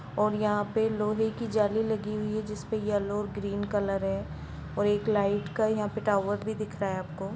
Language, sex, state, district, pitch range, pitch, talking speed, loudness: Hindi, female, Jharkhand, Jamtara, 200-215 Hz, 210 Hz, 210 wpm, -29 LUFS